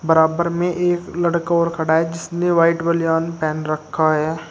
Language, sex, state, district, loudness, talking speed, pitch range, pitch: Hindi, male, Uttar Pradesh, Shamli, -19 LUFS, 175 wpm, 160-170 Hz, 165 Hz